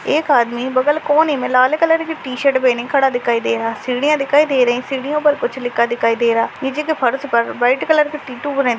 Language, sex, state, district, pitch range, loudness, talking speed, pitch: Hindi, female, Chhattisgarh, Raigarh, 245-295 Hz, -16 LUFS, 240 wpm, 265 Hz